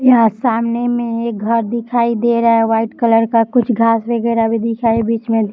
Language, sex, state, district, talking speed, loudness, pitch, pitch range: Hindi, female, Bihar, Samastipur, 215 wpm, -15 LUFS, 230 Hz, 225-235 Hz